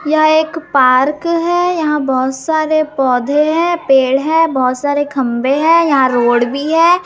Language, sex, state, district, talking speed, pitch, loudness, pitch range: Hindi, female, Chhattisgarh, Raipur, 160 wpm, 295 Hz, -13 LUFS, 265-325 Hz